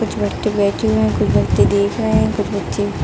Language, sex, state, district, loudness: Hindi, female, Jharkhand, Jamtara, -17 LUFS